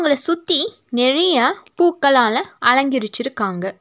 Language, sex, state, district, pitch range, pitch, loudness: Tamil, female, Tamil Nadu, Nilgiris, 240-335 Hz, 270 Hz, -16 LUFS